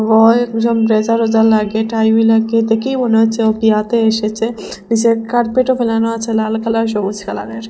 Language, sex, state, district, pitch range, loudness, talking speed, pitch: Bengali, female, Assam, Hailakandi, 220-230 Hz, -14 LUFS, 170 wpm, 225 Hz